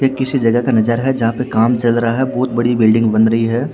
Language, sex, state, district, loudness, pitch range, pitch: Hindi, male, Haryana, Jhajjar, -15 LUFS, 115-130 Hz, 120 Hz